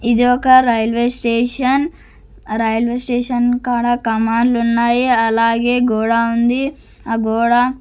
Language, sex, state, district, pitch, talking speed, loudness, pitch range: Telugu, female, Andhra Pradesh, Sri Satya Sai, 240 Hz, 110 wpm, -15 LUFS, 230-245 Hz